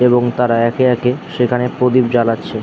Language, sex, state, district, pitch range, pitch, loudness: Bengali, male, West Bengal, Dakshin Dinajpur, 120-125 Hz, 125 Hz, -15 LUFS